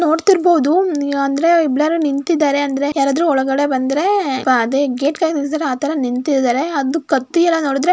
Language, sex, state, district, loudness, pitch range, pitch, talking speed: Kannada, female, Karnataka, Mysore, -16 LUFS, 275-330 Hz, 285 Hz, 135 wpm